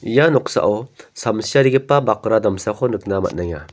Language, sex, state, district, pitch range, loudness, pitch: Garo, male, Meghalaya, North Garo Hills, 100-125 Hz, -18 LUFS, 110 Hz